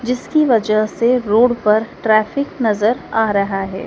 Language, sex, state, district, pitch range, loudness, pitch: Hindi, female, Madhya Pradesh, Dhar, 215-245 Hz, -16 LUFS, 220 Hz